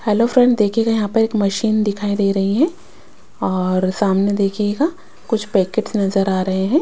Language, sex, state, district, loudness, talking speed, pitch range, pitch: Hindi, female, Bihar, West Champaran, -18 LUFS, 175 wpm, 195-225 Hz, 205 Hz